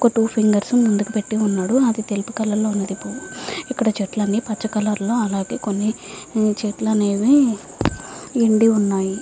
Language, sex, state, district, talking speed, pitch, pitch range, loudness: Telugu, female, Andhra Pradesh, Visakhapatnam, 155 wpm, 215 Hz, 205-225 Hz, -20 LUFS